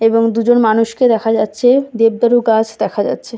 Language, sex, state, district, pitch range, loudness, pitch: Bengali, female, West Bengal, Kolkata, 225-240 Hz, -13 LUFS, 230 Hz